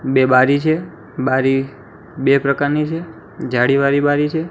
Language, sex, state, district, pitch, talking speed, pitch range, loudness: Gujarati, male, Gujarat, Gandhinagar, 140 Hz, 135 wpm, 135-150 Hz, -16 LUFS